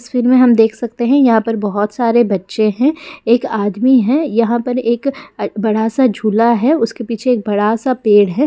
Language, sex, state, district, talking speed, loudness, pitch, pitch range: Hindi, female, Bihar, Darbhanga, 200 wpm, -14 LUFS, 235 Hz, 220-255 Hz